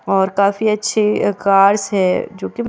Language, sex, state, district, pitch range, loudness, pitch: Hindi, female, Uttarakhand, Tehri Garhwal, 195-215 Hz, -16 LUFS, 200 Hz